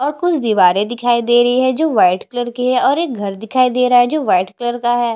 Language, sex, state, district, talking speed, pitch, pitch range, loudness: Hindi, female, Chhattisgarh, Jashpur, 280 wpm, 245 Hz, 230-255 Hz, -15 LUFS